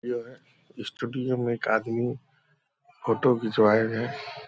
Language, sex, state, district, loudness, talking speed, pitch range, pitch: Hindi, male, Bihar, Purnia, -26 LUFS, 120 wpm, 115-140 Hz, 125 Hz